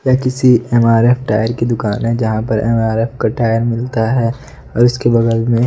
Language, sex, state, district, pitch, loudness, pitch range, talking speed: Hindi, male, Odisha, Nuapada, 115 Hz, -14 LUFS, 115-120 Hz, 190 wpm